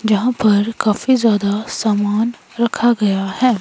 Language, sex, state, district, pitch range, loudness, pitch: Hindi, female, Himachal Pradesh, Shimla, 205-235 Hz, -16 LUFS, 220 Hz